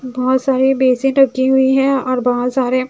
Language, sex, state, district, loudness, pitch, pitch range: Hindi, female, Haryana, Charkhi Dadri, -15 LUFS, 260 Hz, 255-265 Hz